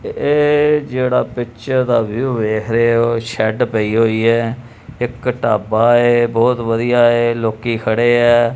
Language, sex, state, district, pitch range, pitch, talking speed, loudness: Punjabi, male, Punjab, Kapurthala, 115-125 Hz, 120 Hz, 145 wpm, -15 LUFS